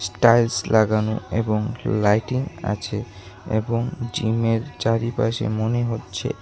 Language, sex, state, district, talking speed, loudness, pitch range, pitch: Bengali, male, Tripura, West Tripura, 95 wpm, -22 LUFS, 105-120 Hz, 110 Hz